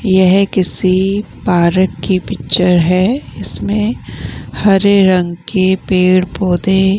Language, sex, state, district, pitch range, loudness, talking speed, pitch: Hindi, female, Bihar, Vaishali, 180-195 Hz, -13 LUFS, 110 wpm, 190 Hz